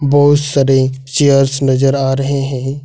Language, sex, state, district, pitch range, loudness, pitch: Hindi, male, Jharkhand, Ranchi, 135-140 Hz, -13 LUFS, 135 Hz